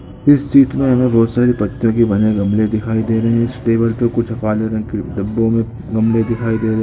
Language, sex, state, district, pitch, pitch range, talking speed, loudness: Hindi, male, Andhra Pradesh, Guntur, 115 Hz, 110-115 Hz, 245 wpm, -15 LUFS